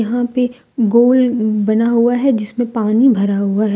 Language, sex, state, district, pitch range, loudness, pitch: Hindi, female, Jharkhand, Deoghar, 215-245 Hz, -15 LUFS, 235 Hz